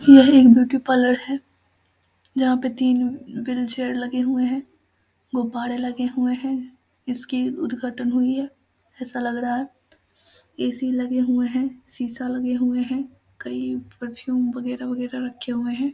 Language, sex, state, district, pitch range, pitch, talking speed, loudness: Hindi, female, Bihar, Samastipur, 245-260 Hz, 250 Hz, 145 wpm, -22 LUFS